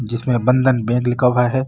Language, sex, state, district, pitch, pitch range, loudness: Marwari, male, Rajasthan, Nagaur, 125 Hz, 120-130 Hz, -17 LUFS